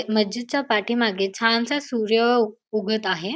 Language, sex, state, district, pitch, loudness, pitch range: Marathi, female, Maharashtra, Dhule, 225 Hz, -22 LUFS, 215-235 Hz